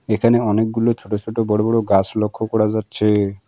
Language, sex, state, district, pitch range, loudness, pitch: Bengali, male, West Bengal, Alipurduar, 105-115 Hz, -18 LUFS, 110 Hz